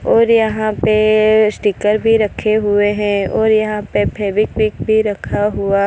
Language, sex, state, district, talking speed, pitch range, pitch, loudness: Hindi, female, Gujarat, Valsad, 165 wpm, 205-215 Hz, 215 Hz, -15 LUFS